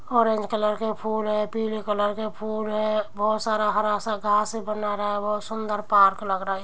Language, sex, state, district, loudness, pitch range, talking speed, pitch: Hindi, female, Uttar Pradesh, Muzaffarnagar, -25 LUFS, 210-215 Hz, 225 wpm, 215 Hz